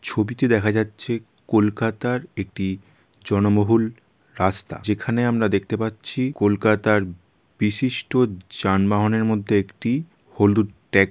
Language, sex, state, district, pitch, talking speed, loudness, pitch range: Bengali, male, West Bengal, Kolkata, 110 Hz, 110 wpm, -22 LUFS, 100-115 Hz